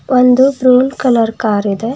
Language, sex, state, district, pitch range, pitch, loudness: Kannada, female, Karnataka, Bangalore, 225-260 Hz, 250 Hz, -12 LUFS